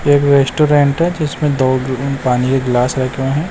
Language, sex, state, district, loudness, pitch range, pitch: Hindi, male, Himachal Pradesh, Shimla, -14 LUFS, 130-145 Hz, 140 Hz